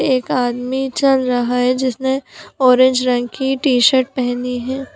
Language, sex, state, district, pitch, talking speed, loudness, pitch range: Hindi, female, Bihar, Gopalganj, 255 Hz, 145 wpm, -16 LUFS, 250-265 Hz